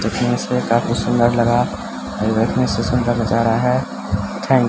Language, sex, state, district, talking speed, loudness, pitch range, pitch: Hindi, male, Bihar, Samastipur, 180 wpm, -18 LUFS, 115-120 Hz, 120 Hz